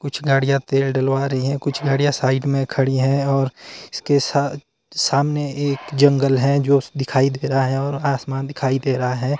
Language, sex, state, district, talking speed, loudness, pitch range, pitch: Hindi, male, Himachal Pradesh, Shimla, 190 wpm, -19 LUFS, 135-140 Hz, 135 Hz